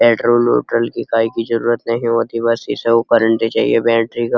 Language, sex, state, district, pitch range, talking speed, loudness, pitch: Hindi, male, Uttar Pradesh, Muzaffarnagar, 115-120 Hz, 165 wpm, -16 LUFS, 115 Hz